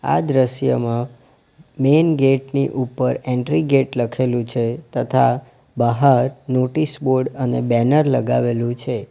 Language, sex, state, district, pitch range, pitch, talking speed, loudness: Gujarati, male, Gujarat, Valsad, 120-140 Hz, 130 Hz, 120 wpm, -18 LUFS